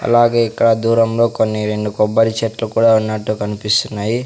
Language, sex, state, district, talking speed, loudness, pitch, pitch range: Telugu, male, Andhra Pradesh, Sri Satya Sai, 140 wpm, -16 LUFS, 110 Hz, 105-115 Hz